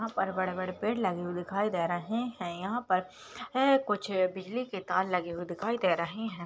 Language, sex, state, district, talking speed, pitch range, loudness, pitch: Hindi, female, Maharashtra, Aurangabad, 215 wpm, 180-225 Hz, -31 LUFS, 190 Hz